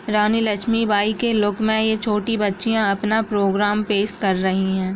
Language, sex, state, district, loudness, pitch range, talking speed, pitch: Hindi, female, Bihar, Bhagalpur, -19 LUFS, 200-220 Hz, 180 wpm, 210 Hz